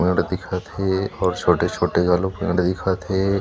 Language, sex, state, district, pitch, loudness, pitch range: Chhattisgarhi, male, Chhattisgarh, Rajnandgaon, 90 Hz, -21 LUFS, 90-95 Hz